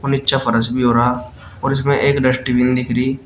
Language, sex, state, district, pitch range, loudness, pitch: Hindi, male, Uttar Pradesh, Shamli, 125-135 Hz, -16 LUFS, 125 Hz